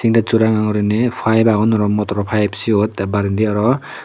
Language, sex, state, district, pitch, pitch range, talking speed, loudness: Chakma, male, Tripura, Unakoti, 110 Hz, 105-115 Hz, 175 wpm, -16 LUFS